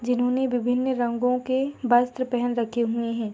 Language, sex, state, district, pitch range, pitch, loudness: Hindi, female, Jharkhand, Sahebganj, 235-255 Hz, 245 Hz, -24 LUFS